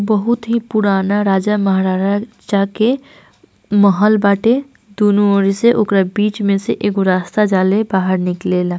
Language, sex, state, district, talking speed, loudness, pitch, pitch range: Hindi, female, Bihar, East Champaran, 145 wpm, -15 LUFS, 205 Hz, 195-215 Hz